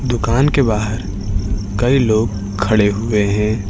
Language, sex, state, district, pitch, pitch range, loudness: Hindi, male, Uttar Pradesh, Lucknow, 105 Hz, 100-115 Hz, -17 LUFS